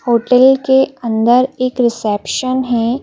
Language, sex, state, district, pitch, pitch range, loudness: Hindi, female, Madhya Pradesh, Bhopal, 250 Hz, 235-260 Hz, -13 LUFS